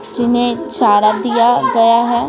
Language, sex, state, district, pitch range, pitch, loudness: Hindi, female, Bihar, Patna, 230-240 Hz, 235 Hz, -13 LUFS